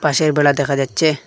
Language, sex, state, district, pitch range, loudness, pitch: Bengali, male, Assam, Hailakandi, 140-155 Hz, -16 LUFS, 145 Hz